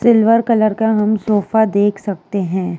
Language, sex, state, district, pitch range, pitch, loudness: Hindi, female, Uttar Pradesh, Jyotiba Phule Nagar, 200-220 Hz, 215 Hz, -15 LUFS